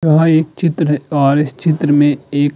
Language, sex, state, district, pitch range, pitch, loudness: Hindi, male, Uttar Pradesh, Jalaun, 145-160 Hz, 150 Hz, -14 LUFS